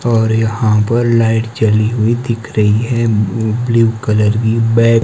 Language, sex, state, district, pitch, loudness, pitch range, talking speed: Hindi, male, Himachal Pradesh, Shimla, 115 Hz, -13 LUFS, 110-115 Hz, 155 wpm